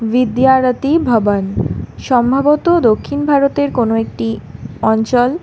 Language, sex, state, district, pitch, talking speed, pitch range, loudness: Bengali, female, Karnataka, Bangalore, 250 Hz, 90 wpm, 225-285 Hz, -14 LUFS